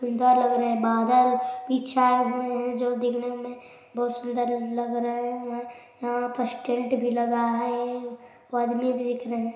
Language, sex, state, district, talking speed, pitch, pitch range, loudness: Hindi, male, Chhattisgarh, Balrampur, 170 wpm, 245 Hz, 240-245 Hz, -25 LUFS